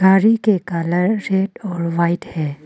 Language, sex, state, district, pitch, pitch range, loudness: Hindi, female, Arunachal Pradesh, Papum Pare, 180 Hz, 170-195 Hz, -18 LUFS